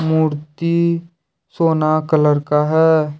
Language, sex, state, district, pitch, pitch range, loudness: Hindi, male, Jharkhand, Deoghar, 160 Hz, 150-165 Hz, -16 LUFS